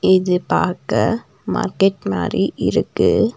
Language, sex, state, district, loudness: Tamil, female, Tamil Nadu, Nilgiris, -18 LUFS